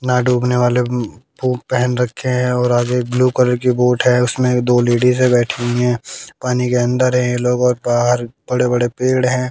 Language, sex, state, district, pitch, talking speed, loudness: Hindi, male, Haryana, Jhajjar, 125 Hz, 215 wpm, -16 LUFS